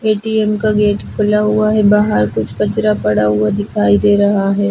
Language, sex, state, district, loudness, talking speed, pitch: Hindi, female, Chhattisgarh, Jashpur, -14 LUFS, 190 wpm, 205 Hz